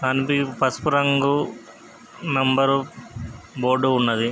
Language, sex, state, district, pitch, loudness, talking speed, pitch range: Telugu, male, Andhra Pradesh, Krishna, 130 Hz, -21 LUFS, 70 wpm, 120-140 Hz